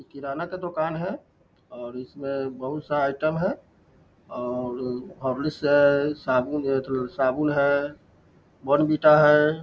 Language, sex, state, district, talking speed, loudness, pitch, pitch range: Hindi, male, Bihar, Lakhisarai, 135 wpm, -24 LUFS, 140 Hz, 130-150 Hz